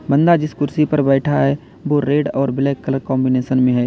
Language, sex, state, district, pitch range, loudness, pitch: Hindi, male, Uttar Pradesh, Lalitpur, 130-145 Hz, -17 LUFS, 140 Hz